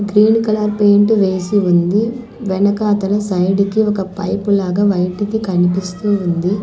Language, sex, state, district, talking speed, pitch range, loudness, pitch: Telugu, female, Andhra Pradesh, Manyam, 135 wpm, 190-210 Hz, -15 LUFS, 200 Hz